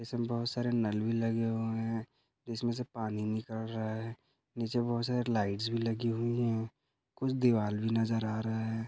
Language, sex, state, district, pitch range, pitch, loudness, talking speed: Hindi, male, Goa, North and South Goa, 110-120 Hz, 115 Hz, -33 LUFS, 195 wpm